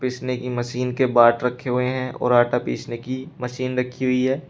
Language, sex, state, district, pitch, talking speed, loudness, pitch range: Hindi, male, Uttar Pradesh, Shamli, 125 Hz, 215 wpm, -22 LUFS, 125-130 Hz